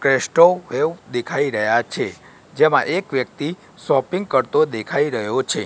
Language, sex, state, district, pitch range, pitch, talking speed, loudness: Gujarati, male, Gujarat, Gandhinagar, 130-170 Hz, 140 Hz, 135 wpm, -19 LUFS